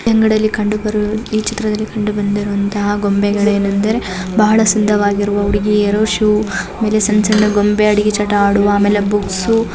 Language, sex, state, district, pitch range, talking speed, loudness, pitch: Kannada, female, Karnataka, Chamarajanagar, 205-215 Hz, 135 wpm, -14 LUFS, 210 Hz